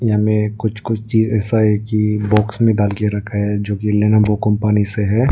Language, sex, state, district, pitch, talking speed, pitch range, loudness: Hindi, male, Arunachal Pradesh, Lower Dibang Valley, 105 Hz, 205 wpm, 105-110 Hz, -17 LUFS